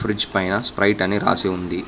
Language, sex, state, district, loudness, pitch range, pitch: Telugu, male, Telangana, Hyderabad, -17 LUFS, 95-105 Hz, 100 Hz